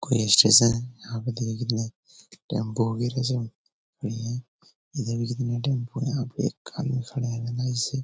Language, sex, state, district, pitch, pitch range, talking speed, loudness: Hindi, male, Bihar, Jahanabad, 120 Hz, 115-125 Hz, 165 wpm, -25 LUFS